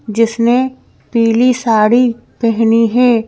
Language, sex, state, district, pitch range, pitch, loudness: Hindi, female, Madhya Pradesh, Bhopal, 225-245 Hz, 230 Hz, -13 LUFS